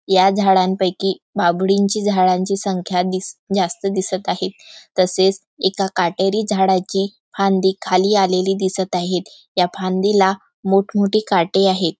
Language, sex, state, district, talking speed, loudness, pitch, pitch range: Marathi, female, Maharashtra, Chandrapur, 125 wpm, -18 LUFS, 190 Hz, 185-195 Hz